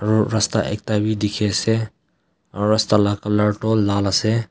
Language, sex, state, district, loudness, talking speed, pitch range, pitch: Nagamese, male, Nagaland, Kohima, -19 LUFS, 160 wpm, 105-110 Hz, 105 Hz